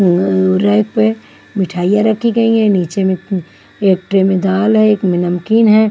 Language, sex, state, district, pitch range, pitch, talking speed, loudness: Hindi, female, Maharashtra, Gondia, 175-215 Hz, 190 Hz, 195 wpm, -13 LUFS